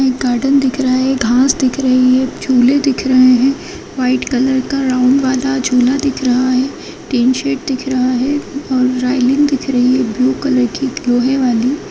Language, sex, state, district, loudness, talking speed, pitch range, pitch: Kumaoni, female, Uttarakhand, Uttarkashi, -14 LUFS, 180 wpm, 255-270 Hz, 260 Hz